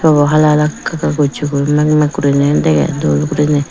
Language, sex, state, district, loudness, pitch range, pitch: Chakma, female, Tripura, Dhalai, -13 LUFS, 140-150 Hz, 145 Hz